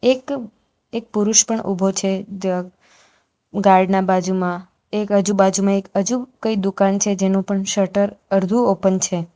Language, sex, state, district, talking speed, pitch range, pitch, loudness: Gujarati, female, Gujarat, Valsad, 145 wpm, 190-210 Hz, 195 Hz, -18 LUFS